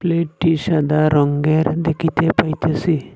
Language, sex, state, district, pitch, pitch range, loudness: Bengali, male, Assam, Hailakandi, 160 Hz, 150-165 Hz, -17 LUFS